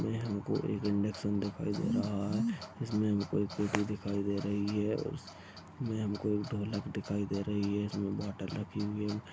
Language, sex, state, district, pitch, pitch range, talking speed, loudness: Hindi, male, Uttarakhand, Uttarkashi, 105 Hz, 100-105 Hz, 200 wpm, -35 LUFS